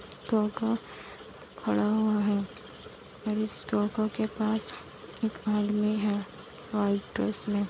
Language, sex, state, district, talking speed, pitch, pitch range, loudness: Hindi, female, Bihar, Kishanganj, 115 wpm, 215 Hz, 205-215 Hz, -30 LUFS